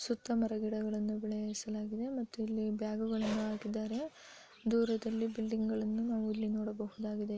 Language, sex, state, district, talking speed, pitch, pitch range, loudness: Kannada, female, Karnataka, Bijapur, 100 wpm, 220 Hz, 215-225 Hz, -36 LUFS